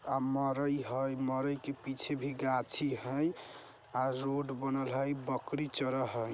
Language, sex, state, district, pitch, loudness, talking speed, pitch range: Bajjika, male, Bihar, Vaishali, 135 Hz, -35 LUFS, 140 wpm, 130-140 Hz